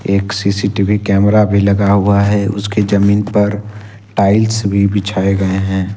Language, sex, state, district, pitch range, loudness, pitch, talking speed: Hindi, male, Jharkhand, Ranchi, 100-105 Hz, -13 LUFS, 100 Hz, 150 wpm